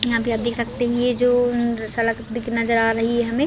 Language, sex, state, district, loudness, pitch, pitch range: Hindi, female, Chhattisgarh, Raigarh, -21 LUFS, 235 Hz, 230-240 Hz